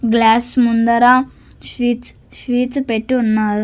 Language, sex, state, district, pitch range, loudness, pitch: Telugu, female, Andhra Pradesh, Sri Satya Sai, 225-250 Hz, -15 LUFS, 240 Hz